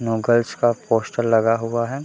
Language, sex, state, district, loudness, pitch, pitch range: Hindi, male, Bihar, Gopalganj, -20 LUFS, 115 Hz, 115-120 Hz